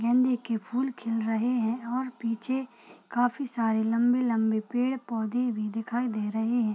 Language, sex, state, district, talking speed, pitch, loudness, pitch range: Hindi, female, Bihar, Purnia, 150 wpm, 235 Hz, -28 LUFS, 225-250 Hz